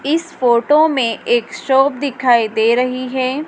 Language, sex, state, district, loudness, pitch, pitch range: Hindi, female, Madhya Pradesh, Dhar, -15 LUFS, 255 Hz, 240-285 Hz